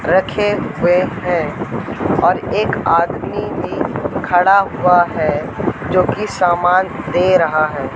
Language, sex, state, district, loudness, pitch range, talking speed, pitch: Hindi, male, Madhya Pradesh, Katni, -16 LUFS, 165-185 Hz, 115 wpm, 180 Hz